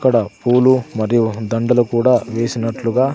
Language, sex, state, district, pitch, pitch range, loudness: Telugu, male, Andhra Pradesh, Sri Satya Sai, 120 Hz, 115-125 Hz, -16 LUFS